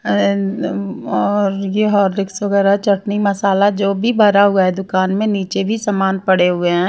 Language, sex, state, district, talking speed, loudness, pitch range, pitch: Hindi, female, Bihar, West Champaran, 165 wpm, -16 LUFS, 185-205 Hz, 195 Hz